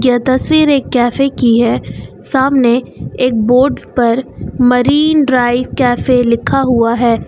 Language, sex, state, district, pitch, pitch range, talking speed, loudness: Hindi, female, Uttar Pradesh, Lucknow, 250 Hz, 240-265 Hz, 130 wpm, -12 LUFS